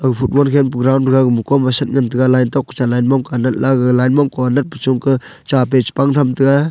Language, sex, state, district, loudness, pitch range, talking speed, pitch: Wancho, male, Arunachal Pradesh, Longding, -14 LUFS, 125-140 Hz, 240 wpm, 130 Hz